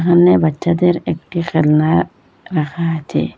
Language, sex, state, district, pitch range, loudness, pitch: Bengali, female, Assam, Hailakandi, 155-170 Hz, -16 LUFS, 165 Hz